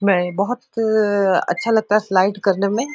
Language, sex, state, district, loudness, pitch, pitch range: Hindi, male, Uttar Pradesh, Etah, -18 LUFS, 200 Hz, 195-220 Hz